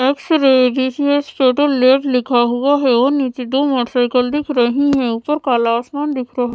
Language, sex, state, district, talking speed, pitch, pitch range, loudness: Hindi, female, Odisha, Sambalpur, 145 wpm, 260 Hz, 245-285 Hz, -15 LUFS